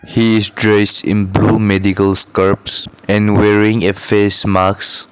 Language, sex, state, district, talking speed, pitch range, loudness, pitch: English, male, Nagaland, Dimapur, 140 wpm, 100-105 Hz, -12 LUFS, 105 Hz